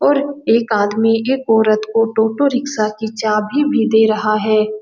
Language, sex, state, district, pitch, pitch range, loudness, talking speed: Hindi, female, Bihar, Saran, 220 Hz, 215-255 Hz, -15 LUFS, 175 wpm